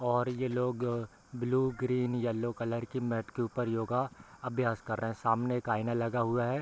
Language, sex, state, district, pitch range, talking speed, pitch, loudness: Hindi, male, Bihar, East Champaran, 115-125 Hz, 200 wpm, 120 Hz, -33 LUFS